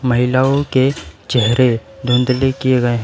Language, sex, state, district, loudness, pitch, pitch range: Hindi, male, West Bengal, Alipurduar, -15 LUFS, 125 Hz, 120-130 Hz